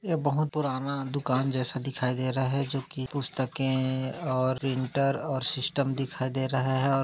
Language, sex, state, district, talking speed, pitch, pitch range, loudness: Hindi, male, Chhattisgarh, Kabirdham, 180 wpm, 135 Hz, 130-140 Hz, -29 LUFS